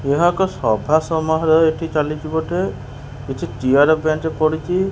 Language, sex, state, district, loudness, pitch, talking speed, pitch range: Odia, male, Odisha, Khordha, -18 LUFS, 155 Hz, 135 wpm, 140-160 Hz